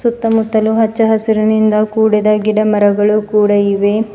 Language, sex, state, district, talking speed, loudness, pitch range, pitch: Kannada, female, Karnataka, Bidar, 130 wpm, -12 LUFS, 210-220 Hz, 215 Hz